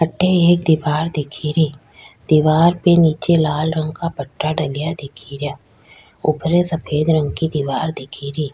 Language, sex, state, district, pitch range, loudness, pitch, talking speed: Rajasthani, female, Rajasthan, Churu, 140-160 Hz, -18 LUFS, 155 Hz, 135 wpm